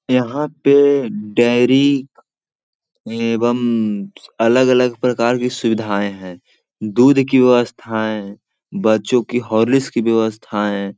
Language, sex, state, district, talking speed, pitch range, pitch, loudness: Hindi, male, Bihar, Jahanabad, 100 wpm, 110-130 Hz, 120 Hz, -16 LUFS